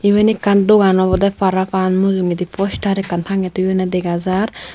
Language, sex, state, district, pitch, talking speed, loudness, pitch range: Chakma, female, Tripura, Dhalai, 190 Hz, 150 wpm, -16 LUFS, 185-200 Hz